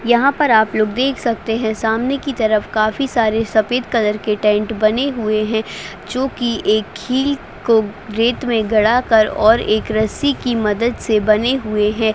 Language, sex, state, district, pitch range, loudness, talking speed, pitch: Hindi, female, Rajasthan, Nagaur, 215-250 Hz, -17 LUFS, 185 wpm, 225 Hz